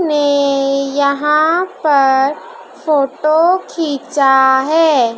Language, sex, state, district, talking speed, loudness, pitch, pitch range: Hindi, male, Madhya Pradesh, Dhar, 70 wpm, -13 LUFS, 285 Hz, 275-315 Hz